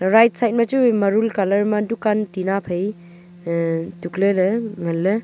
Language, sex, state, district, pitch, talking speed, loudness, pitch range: Wancho, female, Arunachal Pradesh, Longding, 200 Hz, 160 wpm, -20 LUFS, 175-220 Hz